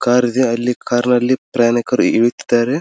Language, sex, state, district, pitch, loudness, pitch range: Kannada, male, Karnataka, Dharwad, 120 Hz, -16 LUFS, 120-125 Hz